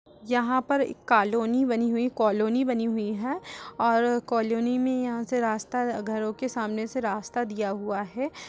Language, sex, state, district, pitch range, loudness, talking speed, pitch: Hindi, female, Uttar Pradesh, Etah, 220-250 Hz, -27 LUFS, 170 wpm, 235 Hz